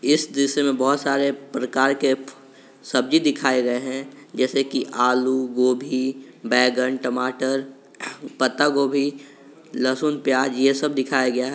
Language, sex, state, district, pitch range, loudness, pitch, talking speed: Hindi, male, Jharkhand, Garhwa, 130-140 Hz, -21 LUFS, 135 Hz, 135 wpm